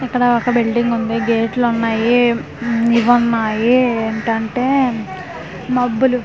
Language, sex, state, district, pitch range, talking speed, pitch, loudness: Telugu, female, Andhra Pradesh, Manyam, 225-245 Hz, 75 wpm, 235 Hz, -16 LUFS